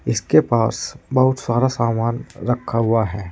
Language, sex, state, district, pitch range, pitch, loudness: Hindi, male, Uttar Pradesh, Saharanpur, 110-125 Hz, 115 Hz, -19 LUFS